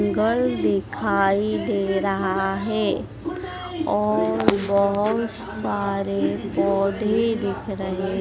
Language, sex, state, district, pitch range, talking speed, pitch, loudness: Hindi, female, Madhya Pradesh, Dhar, 195-215 Hz, 80 wpm, 200 Hz, -23 LUFS